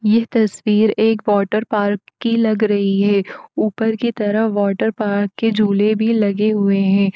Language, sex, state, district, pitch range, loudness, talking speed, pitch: Hindi, female, Uttar Pradesh, Etah, 200-220 Hz, -17 LUFS, 150 wpm, 210 Hz